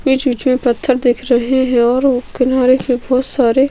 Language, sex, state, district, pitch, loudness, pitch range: Hindi, female, Chhattisgarh, Sukma, 255 Hz, -14 LUFS, 245-265 Hz